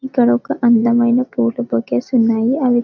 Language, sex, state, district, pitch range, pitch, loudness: Telugu, female, Telangana, Karimnagar, 150-250 Hz, 240 Hz, -16 LUFS